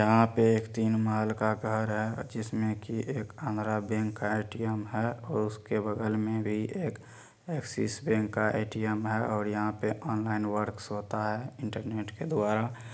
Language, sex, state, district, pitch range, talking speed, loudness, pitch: Maithili, male, Bihar, Supaul, 105-110 Hz, 160 wpm, -31 LUFS, 110 Hz